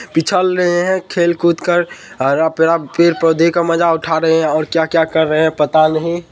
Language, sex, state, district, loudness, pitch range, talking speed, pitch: Hindi, male, Bihar, Purnia, -14 LUFS, 160-170 Hz, 210 wpm, 165 Hz